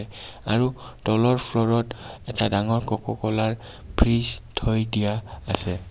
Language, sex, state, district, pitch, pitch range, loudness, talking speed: Assamese, male, Assam, Kamrup Metropolitan, 110 Hz, 105-120 Hz, -25 LUFS, 120 wpm